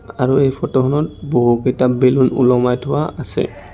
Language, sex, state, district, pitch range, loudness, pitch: Assamese, male, Assam, Kamrup Metropolitan, 125-135 Hz, -16 LUFS, 130 Hz